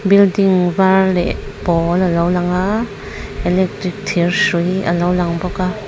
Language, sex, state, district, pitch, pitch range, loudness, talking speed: Mizo, female, Mizoram, Aizawl, 180 Hz, 175-190 Hz, -16 LUFS, 135 wpm